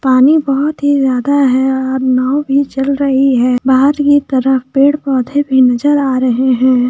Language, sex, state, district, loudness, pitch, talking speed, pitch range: Hindi, female, Jharkhand, Sahebganj, -12 LUFS, 265 Hz, 190 wpm, 260-280 Hz